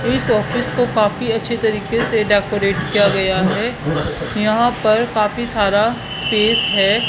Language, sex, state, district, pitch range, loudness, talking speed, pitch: Hindi, female, Haryana, Charkhi Dadri, 205-230 Hz, -16 LUFS, 145 wpm, 215 Hz